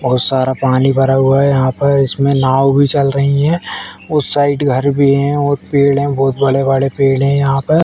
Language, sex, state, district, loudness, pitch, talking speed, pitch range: Hindi, female, Uttar Pradesh, Etah, -13 LUFS, 140 Hz, 215 wpm, 135-140 Hz